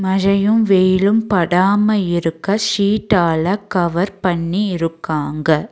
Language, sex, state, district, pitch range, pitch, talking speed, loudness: Tamil, female, Tamil Nadu, Nilgiris, 170-205 Hz, 190 Hz, 85 wpm, -16 LUFS